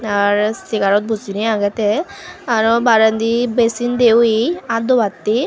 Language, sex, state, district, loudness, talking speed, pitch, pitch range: Chakma, female, Tripura, Unakoti, -16 LUFS, 130 wpm, 225 Hz, 210-235 Hz